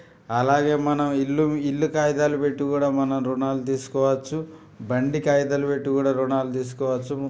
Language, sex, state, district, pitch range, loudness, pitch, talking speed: Telugu, male, Telangana, Karimnagar, 135-145 Hz, -23 LUFS, 140 Hz, 130 wpm